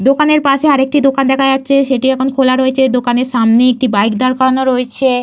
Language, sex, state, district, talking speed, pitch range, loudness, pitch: Bengali, female, Jharkhand, Jamtara, 205 wpm, 255-270 Hz, -12 LUFS, 260 Hz